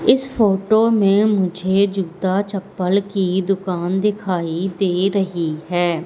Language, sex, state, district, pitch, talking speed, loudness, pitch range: Hindi, female, Madhya Pradesh, Katni, 190 Hz, 120 wpm, -19 LUFS, 180-200 Hz